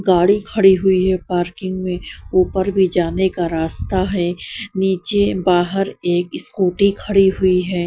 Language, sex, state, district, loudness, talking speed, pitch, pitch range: Hindi, female, Punjab, Kapurthala, -17 LUFS, 145 wpm, 185 Hz, 180-195 Hz